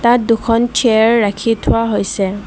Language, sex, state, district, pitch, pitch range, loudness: Assamese, female, Assam, Kamrup Metropolitan, 225 Hz, 205-235 Hz, -14 LUFS